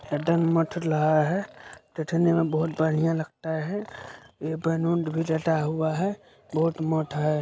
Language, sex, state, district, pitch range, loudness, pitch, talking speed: Hindi, male, Bihar, Supaul, 155-165 Hz, -26 LUFS, 160 Hz, 155 wpm